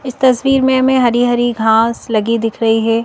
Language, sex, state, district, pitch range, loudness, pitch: Hindi, female, Madhya Pradesh, Bhopal, 225-260 Hz, -13 LUFS, 240 Hz